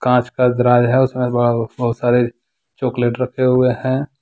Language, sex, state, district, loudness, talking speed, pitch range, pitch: Hindi, male, Jharkhand, Deoghar, -17 LUFS, 155 wpm, 120-130 Hz, 125 Hz